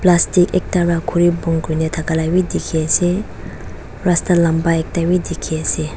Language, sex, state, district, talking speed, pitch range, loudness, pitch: Nagamese, female, Nagaland, Dimapur, 140 wpm, 160-180 Hz, -17 LUFS, 170 Hz